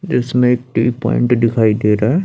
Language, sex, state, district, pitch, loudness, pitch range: Hindi, male, Chandigarh, Chandigarh, 120 Hz, -15 LUFS, 110-125 Hz